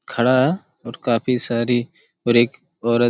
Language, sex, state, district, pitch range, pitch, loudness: Hindi, male, Chhattisgarh, Raigarh, 120-130 Hz, 120 Hz, -20 LUFS